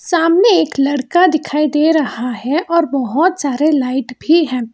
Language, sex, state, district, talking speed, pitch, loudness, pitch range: Hindi, female, Karnataka, Bangalore, 165 wpm, 300 Hz, -14 LUFS, 265-335 Hz